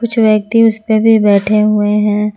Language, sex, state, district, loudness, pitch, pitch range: Hindi, female, Jharkhand, Palamu, -11 LUFS, 215 Hz, 210-225 Hz